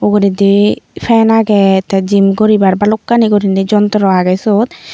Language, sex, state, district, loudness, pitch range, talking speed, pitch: Chakma, female, Tripura, Unakoti, -11 LUFS, 195-215 Hz, 135 wpm, 205 Hz